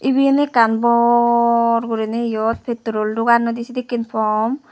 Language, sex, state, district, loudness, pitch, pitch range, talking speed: Chakma, female, Tripura, West Tripura, -17 LUFS, 235 Hz, 225-235 Hz, 125 wpm